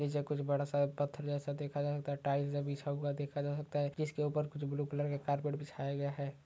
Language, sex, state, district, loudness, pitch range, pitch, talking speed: Hindi, male, Chhattisgarh, Raigarh, -37 LUFS, 140-145 Hz, 145 Hz, 260 wpm